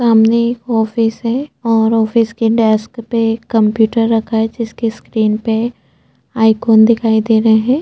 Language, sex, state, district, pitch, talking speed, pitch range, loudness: Hindi, female, Chhattisgarh, Jashpur, 225 Hz, 160 wpm, 220-230 Hz, -14 LUFS